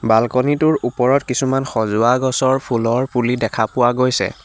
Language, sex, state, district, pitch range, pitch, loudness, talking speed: Assamese, male, Assam, Hailakandi, 115-130 Hz, 125 Hz, -17 LUFS, 135 wpm